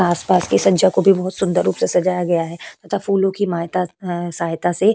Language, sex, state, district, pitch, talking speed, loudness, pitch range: Hindi, female, Uttar Pradesh, Hamirpur, 180 Hz, 255 wpm, -18 LUFS, 170-195 Hz